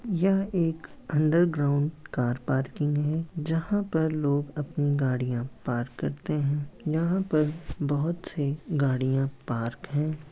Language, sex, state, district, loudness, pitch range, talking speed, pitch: Hindi, male, Bihar, Muzaffarpur, -28 LUFS, 140-165 Hz, 120 wpm, 150 Hz